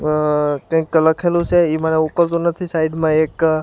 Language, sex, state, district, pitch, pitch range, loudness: Gujarati, male, Gujarat, Gandhinagar, 160 Hz, 155-170 Hz, -17 LUFS